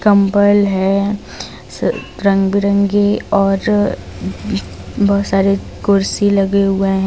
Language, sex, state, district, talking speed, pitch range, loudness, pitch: Hindi, female, Jharkhand, Deoghar, 85 wpm, 195-205 Hz, -15 LUFS, 200 Hz